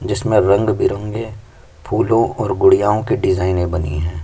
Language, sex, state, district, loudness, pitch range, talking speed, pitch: Hindi, male, Chhattisgarh, Kabirdham, -17 LUFS, 90-115 Hz, 140 wpm, 105 Hz